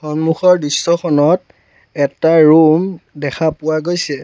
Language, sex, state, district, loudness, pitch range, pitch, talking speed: Assamese, male, Assam, Sonitpur, -14 LUFS, 150-165 Hz, 155 Hz, 100 wpm